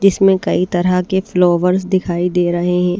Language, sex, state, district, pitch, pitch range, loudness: Hindi, female, Bihar, Patna, 180 Hz, 180-190 Hz, -15 LUFS